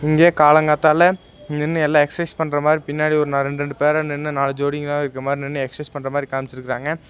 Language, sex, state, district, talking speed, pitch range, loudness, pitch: Tamil, male, Tamil Nadu, Nilgiris, 180 wpm, 140-155 Hz, -19 LUFS, 150 Hz